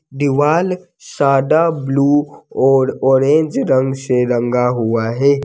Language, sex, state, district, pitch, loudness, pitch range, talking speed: Hindi, male, Jharkhand, Deoghar, 135 Hz, -15 LUFS, 130-145 Hz, 110 wpm